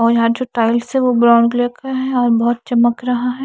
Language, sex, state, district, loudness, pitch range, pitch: Hindi, female, Chandigarh, Chandigarh, -15 LUFS, 235-250 Hz, 240 Hz